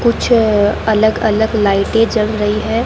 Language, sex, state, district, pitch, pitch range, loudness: Hindi, female, Rajasthan, Bikaner, 220 Hz, 210-225 Hz, -14 LUFS